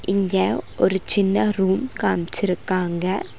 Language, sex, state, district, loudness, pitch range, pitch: Tamil, female, Tamil Nadu, Nilgiris, -20 LUFS, 185-200 Hz, 190 Hz